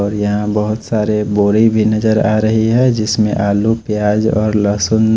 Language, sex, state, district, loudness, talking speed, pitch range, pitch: Hindi, male, Chhattisgarh, Raipur, -14 LUFS, 175 wpm, 105-110 Hz, 110 Hz